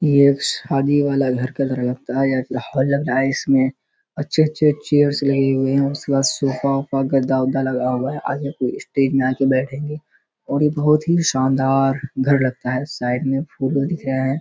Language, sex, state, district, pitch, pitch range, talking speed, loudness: Hindi, male, Bihar, Kishanganj, 135 Hz, 130-140 Hz, 205 wpm, -19 LUFS